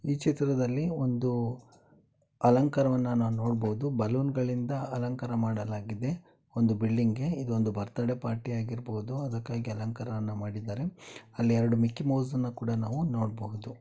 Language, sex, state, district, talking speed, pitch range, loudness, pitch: Kannada, male, Karnataka, Bellary, 120 wpm, 115-130 Hz, -30 LUFS, 120 Hz